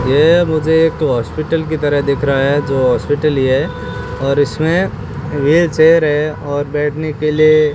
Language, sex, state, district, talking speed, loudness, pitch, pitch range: Hindi, male, Rajasthan, Bikaner, 180 wpm, -14 LUFS, 150 Hz, 140-155 Hz